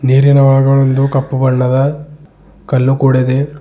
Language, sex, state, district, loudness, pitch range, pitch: Kannada, male, Karnataka, Bidar, -12 LUFS, 130-140 Hz, 135 Hz